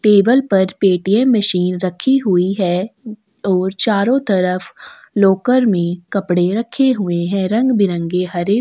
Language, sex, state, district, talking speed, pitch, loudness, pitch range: Hindi, female, Chhattisgarh, Sukma, 130 wpm, 195 Hz, -15 LUFS, 180-220 Hz